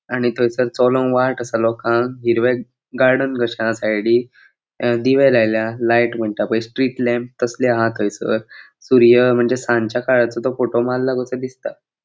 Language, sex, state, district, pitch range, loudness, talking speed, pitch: Konkani, male, Goa, North and South Goa, 115-125 Hz, -17 LUFS, 150 wpm, 120 Hz